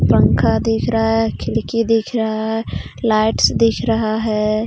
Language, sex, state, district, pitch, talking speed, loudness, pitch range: Hindi, female, Jharkhand, Ranchi, 220 Hz, 155 wpm, -17 LUFS, 215-225 Hz